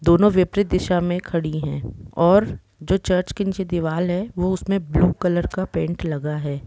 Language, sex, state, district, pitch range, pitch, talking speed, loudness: Hindi, female, Jharkhand, Jamtara, 160-185 Hz, 175 Hz, 190 wpm, -21 LUFS